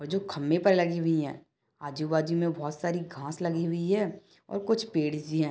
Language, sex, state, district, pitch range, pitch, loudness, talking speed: Hindi, male, Bihar, Kishanganj, 155-180 Hz, 170 Hz, -29 LUFS, 185 wpm